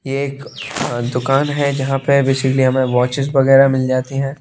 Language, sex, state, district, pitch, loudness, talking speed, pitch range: Hindi, male, Bihar, West Champaran, 135 Hz, -16 LUFS, 190 wpm, 130-140 Hz